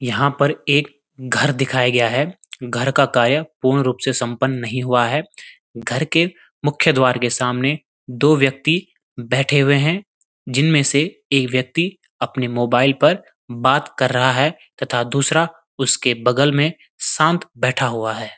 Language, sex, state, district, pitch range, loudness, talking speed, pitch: Hindi, male, Uttarakhand, Uttarkashi, 125-150 Hz, -18 LUFS, 155 wpm, 135 Hz